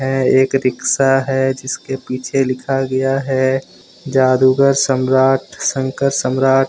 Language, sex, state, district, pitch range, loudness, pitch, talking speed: Hindi, male, Jharkhand, Deoghar, 130-135 Hz, -16 LUFS, 135 Hz, 115 wpm